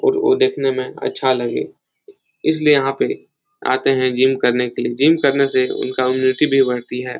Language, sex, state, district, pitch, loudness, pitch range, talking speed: Hindi, male, Uttar Pradesh, Etah, 135 Hz, -17 LUFS, 130-160 Hz, 190 wpm